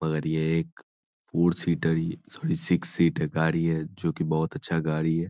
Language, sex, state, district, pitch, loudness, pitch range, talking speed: Hindi, male, Bihar, Darbhanga, 80 Hz, -27 LUFS, 80-85 Hz, 180 wpm